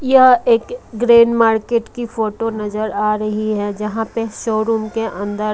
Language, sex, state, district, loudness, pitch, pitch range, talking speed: Hindi, female, Odisha, Malkangiri, -17 LUFS, 225 Hz, 215-235 Hz, 165 wpm